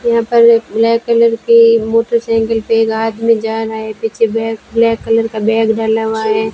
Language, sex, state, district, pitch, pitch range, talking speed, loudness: Hindi, female, Rajasthan, Bikaner, 225 Hz, 220-230 Hz, 195 wpm, -13 LUFS